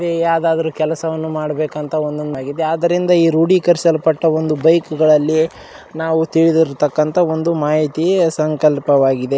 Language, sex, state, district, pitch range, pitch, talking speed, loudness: Kannada, male, Karnataka, Raichur, 155-165 Hz, 160 Hz, 110 wpm, -16 LUFS